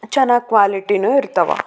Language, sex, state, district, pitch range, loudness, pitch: Kannada, female, Karnataka, Raichur, 200-255 Hz, -16 LUFS, 220 Hz